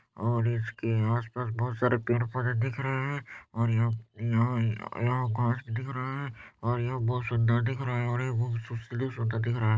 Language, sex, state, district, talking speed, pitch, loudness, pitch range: Hindi, male, Chhattisgarh, Balrampur, 195 wpm, 120 Hz, -30 LUFS, 115-125 Hz